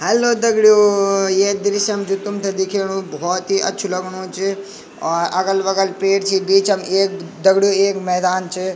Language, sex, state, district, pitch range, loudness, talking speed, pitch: Garhwali, male, Uttarakhand, Tehri Garhwal, 190-200 Hz, -17 LUFS, 165 wpm, 195 Hz